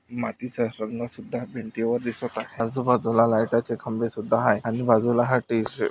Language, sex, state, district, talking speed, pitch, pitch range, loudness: Marathi, male, Maharashtra, Nagpur, 170 wpm, 115 Hz, 115-120 Hz, -25 LUFS